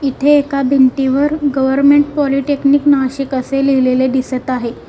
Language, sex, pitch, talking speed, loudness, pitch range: Marathi, female, 275 Hz, 125 wpm, -13 LUFS, 260-285 Hz